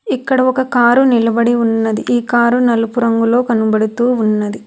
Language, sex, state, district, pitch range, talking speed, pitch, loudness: Telugu, female, Telangana, Hyderabad, 225-245 Hz, 140 wpm, 235 Hz, -13 LUFS